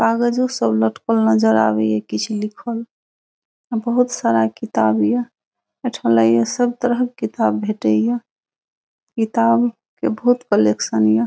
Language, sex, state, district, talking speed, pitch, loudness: Hindi, female, Bihar, Saharsa, 145 wpm, 210 Hz, -18 LUFS